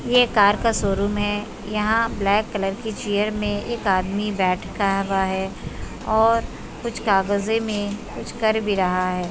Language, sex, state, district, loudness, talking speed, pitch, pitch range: Hindi, female, Uttar Pradesh, Budaun, -22 LUFS, 155 wpm, 205 Hz, 195-220 Hz